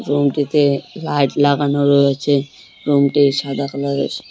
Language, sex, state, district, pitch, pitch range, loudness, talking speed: Bengali, male, West Bengal, Cooch Behar, 140 Hz, 140-145 Hz, -17 LUFS, 140 wpm